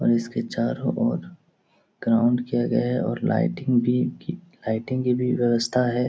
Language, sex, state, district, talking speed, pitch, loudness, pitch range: Hindi, male, Bihar, Jahanabad, 165 wpm, 120 Hz, -24 LUFS, 115-125 Hz